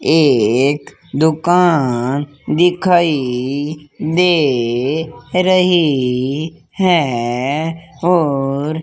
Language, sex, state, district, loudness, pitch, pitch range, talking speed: Hindi, male, Rajasthan, Bikaner, -15 LUFS, 150 Hz, 135-165 Hz, 60 wpm